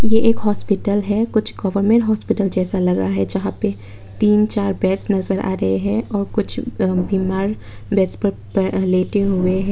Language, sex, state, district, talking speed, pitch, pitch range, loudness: Hindi, female, Tripura, West Tripura, 175 wpm, 195 Hz, 190-210 Hz, -19 LUFS